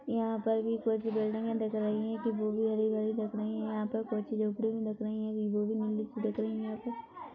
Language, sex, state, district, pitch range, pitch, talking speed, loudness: Hindi, male, Chhattisgarh, Korba, 215-225 Hz, 220 Hz, 115 wpm, -33 LUFS